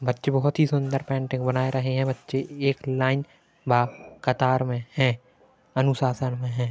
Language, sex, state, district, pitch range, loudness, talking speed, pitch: Hindi, male, Uttar Pradesh, Hamirpur, 125-135 Hz, -25 LUFS, 160 wpm, 130 Hz